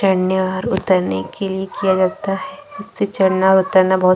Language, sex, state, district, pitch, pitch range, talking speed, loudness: Hindi, female, Chhattisgarh, Jashpur, 190 Hz, 185-195 Hz, 200 wpm, -17 LUFS